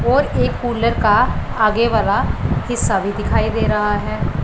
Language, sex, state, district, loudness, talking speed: Hindi, male, Punjab, Pathankot, -17 LUFS, 160 wpm